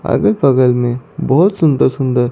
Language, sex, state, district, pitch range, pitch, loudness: Hindi, female, Chandigarh, Chandigarh, 125-160 Hz, 135 Hz, -13 LUFS